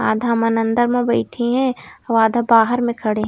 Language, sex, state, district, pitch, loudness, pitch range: Chhattisgarhi, female, Chhattisgarh, Raigarh, 235 Hz, -17 LUFS, 225-240 Hz